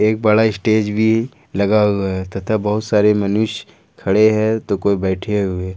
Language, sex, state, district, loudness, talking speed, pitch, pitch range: Hindi, male, Jharkhand, Ranchi, -17 LUFS, 175 wpm, 105 Hz, 100-110 Hz